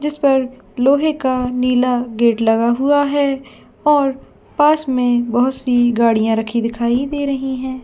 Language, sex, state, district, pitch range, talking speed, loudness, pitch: Hindi, female, Jharkhand, Jamtara, 240-275 Hz, 155 wpm, -16 LUFS, 255 Hz